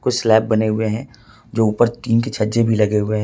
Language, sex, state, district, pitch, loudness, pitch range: Hindi, male, Jharkhand, Ranchi, 110 Hz, -18 LUFS, 110-115 Hz